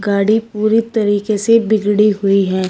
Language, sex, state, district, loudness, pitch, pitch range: Hindi, female, Uttar Pradesh, Shamli, -14 LUFS, 210 Hz, 200-220 Hz